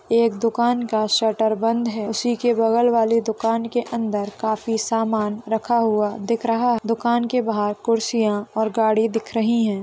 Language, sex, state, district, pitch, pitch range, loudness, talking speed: Hindi, female, Chhattisgarh, Korba, 225 Hz, 220-230 Hz, -21 LUFS, 175 wpm